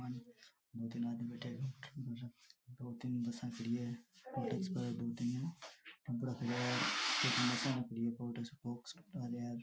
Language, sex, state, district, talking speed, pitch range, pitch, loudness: Marwari, male, Rajasthan, Nagaur, 125 wpm, 120-125 Hz, 120 Hz, -41 LUFS